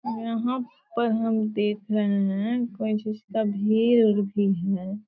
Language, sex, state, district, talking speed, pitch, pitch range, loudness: Hindi, female, Bihar, Sitamarhi, 155 wpm, 215 Hz, 205-230 Hz, -25 LUFS